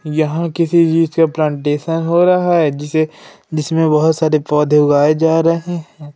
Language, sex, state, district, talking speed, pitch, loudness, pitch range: Hindi, female, Madhya Pradesh, Umaria, 165 wpm, 160 Hz, -14 LUFS, 150-165 Hz